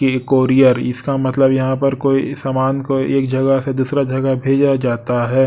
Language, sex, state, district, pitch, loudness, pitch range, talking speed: Hindi, male, Odisha, Sambalpur, 135 Hz, -16 LUFS, 130-135 Hz, 185 wpm